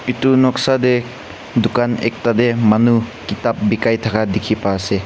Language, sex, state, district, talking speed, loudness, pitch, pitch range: Nagamese, male, Nagaland, Kohima, 140 wpm, -16 LUFS, 115 Hz, 110-120 Hz